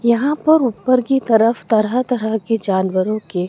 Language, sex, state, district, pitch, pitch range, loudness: Hindi, female, Madhya Pradesh, Dhar, 225 Hz, 215-255 Hz, -17 LUFS